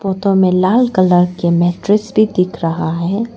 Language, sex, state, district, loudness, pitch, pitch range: Hindi, female, Arunachal Pradesh, Lower Dibang Valley, -14 LUFS, 185 Hz, 175-205 Hz